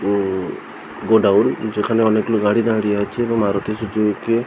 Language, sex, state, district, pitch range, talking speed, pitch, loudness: Bengali, male, West Bengal, Purulia, 100-110 Hz, 160 wpm, 110 Hz, -18 LUFS